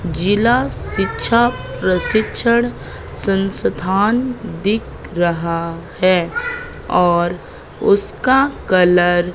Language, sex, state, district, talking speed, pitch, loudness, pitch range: Hindi, female, Madhya Pradesh, Katni, 70 wpm, 190 Hz, -16 LUFS, 175-235 Hz